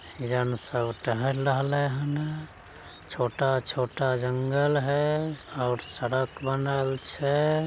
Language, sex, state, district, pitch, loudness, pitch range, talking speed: Angika, male, Bihar, Begusarai, 135 Hz, -28 LUFS, 125-145 Hz, 95 wpm